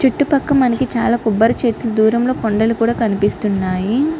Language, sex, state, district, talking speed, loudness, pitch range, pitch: Telugu, female, Andhra Pradesh, Chittoor, 145 wpm, -16 LUFS, 220-255 Hz, 235 Hz